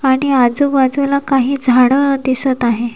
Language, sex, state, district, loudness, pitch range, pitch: Marathi, female, Maharashtra, Washim, -13 LUFS, 250-275 Hz, 265 Hz